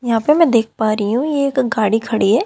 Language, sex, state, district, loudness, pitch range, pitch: Hindi, female, Haryana, Jhajjar, -16 LUFS, 220-265 Hz, 230 Hz